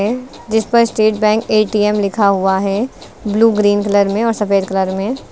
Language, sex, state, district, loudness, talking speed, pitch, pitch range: Hindi, female, Uttar Pradesh, Lucknow, -15 LUFS, 180 wpm, 210 Hz, 200-225 Hz